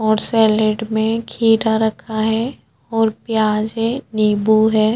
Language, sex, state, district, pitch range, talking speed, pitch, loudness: Hindi, female, Chhattisgarh, Bastar, 215-225 Hz, 135 wpm, 220 Hz, -17 LUFS